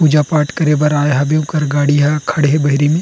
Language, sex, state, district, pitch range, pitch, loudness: Chhattisgarhi, male, Chhattisgarh, Rajnandgaon, 145-155 Hz, 150 Hz, -14 LUFS